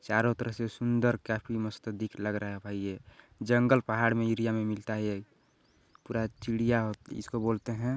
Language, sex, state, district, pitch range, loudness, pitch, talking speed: Hindi, male, Chhattisgarh, Balrampur, 105-115 Hz, -31 LUFS, 115 Hz, 190 wpm